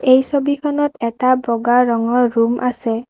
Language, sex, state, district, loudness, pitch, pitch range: Assamese, female, Assam, Kamrup Metropolitan, -17 LUFS, 245 Hz, 235-260 Hz